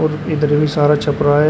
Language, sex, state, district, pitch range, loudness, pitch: Hindi, male, Uttar Pradesh, Shamli, 145-155 Hz, -15 LUFS, 150 Hz